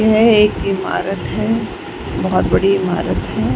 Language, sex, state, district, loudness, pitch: Hindi, female, Uttar Pradesh, Varanasi, -16 LUFS, 190 Hz